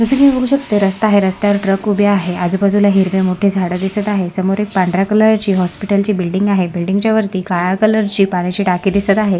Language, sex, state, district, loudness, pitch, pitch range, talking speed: Marathi, female, Maharashtra, Sindhudurg, -14 LUFS, 200 Hz, 185-205 Hz, 235 wpm